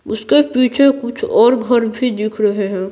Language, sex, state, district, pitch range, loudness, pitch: Hindi, female, Bihar, Patna, 215-260 Hz, -15 LUFS, 245 Hz